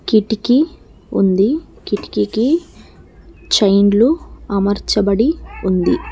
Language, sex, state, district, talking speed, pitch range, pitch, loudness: Telugu, female, Telangana, Mahabubabad, 60 wpm, 200-260 Hz, 210 Hz, -16 LUFS